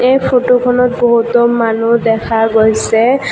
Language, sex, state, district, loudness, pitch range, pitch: Assamese, female, Assam, Kamrup Metropolitan, -11 LUFS, 225-250 Hz, 235 Hz